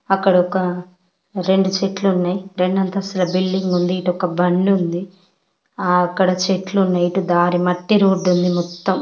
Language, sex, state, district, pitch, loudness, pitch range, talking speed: Telugu, female, Andhra Pradesh, Chittoor, 185 Hz, -18 LUFS, 180-190 Hz, 155 wpm